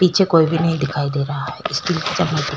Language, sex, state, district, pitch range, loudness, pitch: Hindi, female, Chhattisgarh, Korba, 145-175 Hz, -19 LUFS, 160 Hz